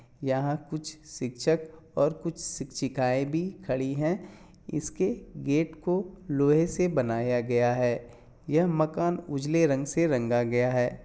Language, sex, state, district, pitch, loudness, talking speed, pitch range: Hindi, male, Jharkhand, Jamtara, 145 Hz, -28 LUFS, 135 wpm, 125-165 Hz